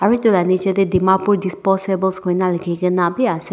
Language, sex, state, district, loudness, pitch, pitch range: Nagamese, female, Nagaland, Dimapur, -17 LUFS, 190 Hz, 180-195 Hz